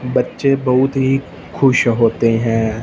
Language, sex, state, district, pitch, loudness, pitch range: Hindi, male, Punjab, Fazilka, 125 Hz, -15 LUFS, 115-135 Hz